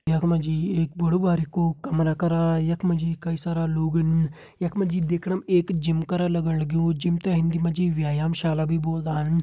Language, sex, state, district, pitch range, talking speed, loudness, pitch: Garhwali, male, Uttarakhand, Uttarkashi, 160-175 Hz, 205 wpm, -24 LUFS, 165 Hz